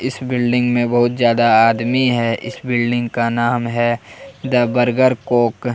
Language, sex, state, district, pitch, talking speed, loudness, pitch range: Hindi, male, Jharkhand, Deoghar, 120 Hz, 165 wpm, -16 LUFS, 120-125 Hz